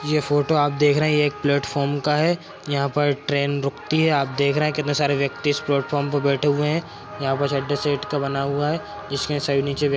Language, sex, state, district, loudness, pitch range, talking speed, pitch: Hindi, male, Bihar, Madhepura, -22 LUFS, 140-150 Hz, 240 wpm, 145 Hz